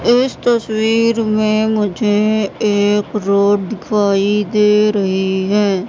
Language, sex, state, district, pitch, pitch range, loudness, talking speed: Hindi, female, Madhya Pradesh, Katni, 210 Hz, 205-220 Hz, -15 LUFS, 100 wpm